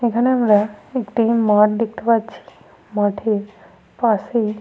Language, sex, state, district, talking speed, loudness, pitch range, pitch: Bengali, female, Jharkhand, Sahebganj, 115 wpm, -18 LUFS, 210-230 Hz, 220 Hz